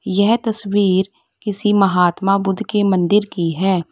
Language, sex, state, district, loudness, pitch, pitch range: Hindi, female, Uttar Pradesh, Lalitpur, -16 LUFS, 195 Hz, 185-205 Hz